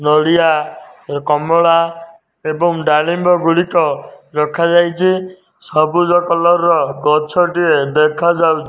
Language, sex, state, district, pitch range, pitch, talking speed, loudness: Odia, male, Odisha, Nuapada, 155-175 Hz, 165 Hz, 90 wpm, -14 LUFS